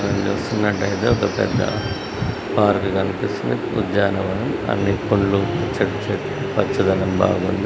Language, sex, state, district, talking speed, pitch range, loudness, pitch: Telugu, male, Andhra Pradesh, Guntur, 95 wpm, 95-105 Hz, -20 LUFS, 100 Hz